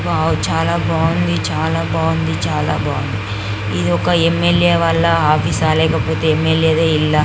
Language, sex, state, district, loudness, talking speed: Telugu, female, Andhra Pradesh, Guntur, -16 LUFS, 140 wpm